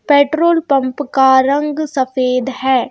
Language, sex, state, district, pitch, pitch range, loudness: Hindi, female, Madhya Pradesh, Bhopal, 270 Hz, 260-295 Hz, -14 LUFS